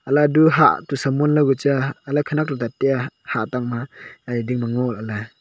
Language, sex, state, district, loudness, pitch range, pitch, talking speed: Wancho, male, Arunachal Pradesh, Longding, -20 LUFS, 120-145 Hz, 135 Hz, 210 wpm